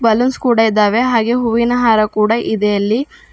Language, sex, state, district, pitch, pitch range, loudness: Kannada, female, Karnataka, Bidar, 230 Hz, 215-245 Hz, -14 LUFS